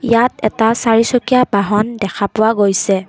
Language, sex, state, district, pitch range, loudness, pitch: Assamese, female, Assam, Kamrup Metropolitan, 200-235 Hz, -14 LUFS, 220 Hz